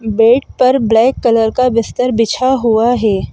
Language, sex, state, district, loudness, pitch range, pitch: Hindi, female, Madhya Pradesh, Bhopal, -12 LUFS, 225-255 Hz, 235 Hz